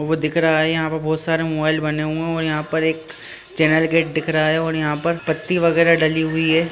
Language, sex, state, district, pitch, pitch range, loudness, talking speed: Hindi, male, Bihar, Lakhisarai, 160 Hz, 155-165 Hz, -19 LUFS, 260 wpm